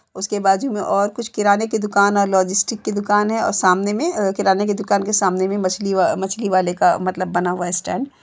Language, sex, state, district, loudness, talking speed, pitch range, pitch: Hindi, female, Uttar Pradesh, Jalaun, -18 LUFS, 250 wpm, 190-210 Hz, 200 Hz